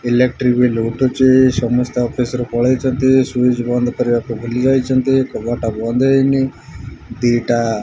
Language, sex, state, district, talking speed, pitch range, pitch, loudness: Odia, male, Odisha, Malkangiri, 140 wpm, 120-130 Hz, 125 Hz, -16 LUFS